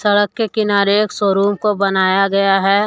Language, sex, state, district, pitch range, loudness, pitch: Hindi, male, Jharkhand, Deoghar, 195-210 Hz, -15 LUFS, 200 Hz